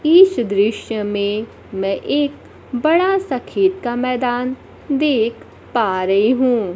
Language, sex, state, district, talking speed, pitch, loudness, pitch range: Hindi, female, Bihar, Kaimur, 125 wpm, 245 Hz, -18 LUFS, 210-290 Hz